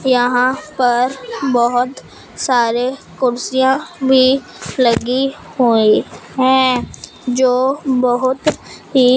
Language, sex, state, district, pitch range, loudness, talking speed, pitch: Hindi, female, Punjab, Fazilka, 245-265 Hz, -15 LUFS, 80 wpm, 255 Hz